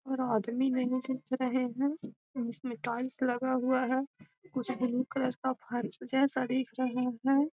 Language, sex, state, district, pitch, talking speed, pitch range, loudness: Magahi, female, Bihar, Gaya, 255 Hz, 145 wpm, 250-265 Hz, -32 LUFS